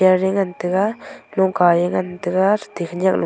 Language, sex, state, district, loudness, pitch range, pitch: Wancho, female, Arunachal Pradesh, Longding, -19 LUFS, 180-190 Hz, 185 Hz